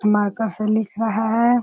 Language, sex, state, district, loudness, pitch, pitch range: Hindi, female, Bihar, Sitamarhi, -21 LUFS, 220 Hz, 210-225 Hz